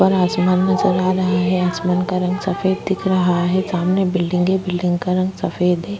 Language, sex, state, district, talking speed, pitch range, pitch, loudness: Hindi, female, Maharashtra, Aurangabad, 210 wpm, 180-190 Hz, 185 Hz, -18 LUFS